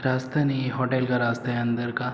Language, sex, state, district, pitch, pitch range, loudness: Hindi, male, Uttar Pradesh, Muzaffarnagar, 125 Hz, 120-130 Hz, -25 LUFS